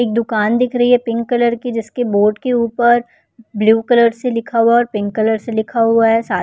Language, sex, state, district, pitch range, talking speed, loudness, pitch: Hindi, female, Delhi, New Delhi, 220-240 Hz, 250 wpm, -15 LUFS, 230 Hz